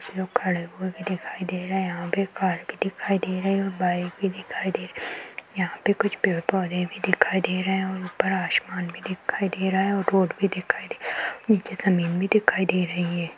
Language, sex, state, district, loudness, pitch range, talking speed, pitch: Hindi, female, Bihar, Saharsa, -25 LUFS, 180-195 Hz, 245 wpm, 190 Hz